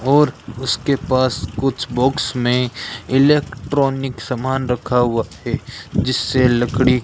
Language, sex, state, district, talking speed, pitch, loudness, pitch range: Hindi, male, Rajasthan, Bikaner, 120 wpm, 130 Hz, -18 LUFS, 120-135 Hz